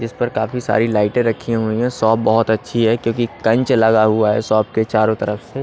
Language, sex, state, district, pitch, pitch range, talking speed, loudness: Hindi, male, Odisha, Malkangiri, 110 Hz, 110-115 Hz, 235 wpm, -17 LUFS